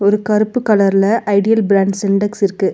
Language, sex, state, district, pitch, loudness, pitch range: Tamil, female, Tamil Nadu, Nilgiris, 205 Hz, -14 LUFS, 195-215 Hz